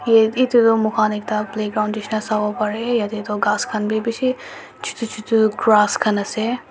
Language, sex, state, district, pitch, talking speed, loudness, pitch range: Nagamese, male, Nagaland, Dimapur, 215 Hz, 160 wpm, -19 LUFS, 210-225 Hz